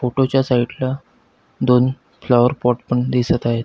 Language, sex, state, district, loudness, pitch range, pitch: Marathi, male, Maharashtra, Pune, -18 LUFS, 125-130 Hz, 125 Hz